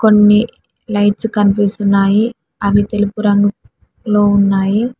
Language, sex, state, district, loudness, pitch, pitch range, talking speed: Telugu, male, Telangana, Hyderabad, -14 LUFS, 205 Hz, 200-215 Hz, 95 wpm